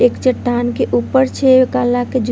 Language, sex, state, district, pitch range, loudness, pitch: Maithili, female, Bihar, Vaishali, 245-255 Hz, -15 LUFS, 245 Hz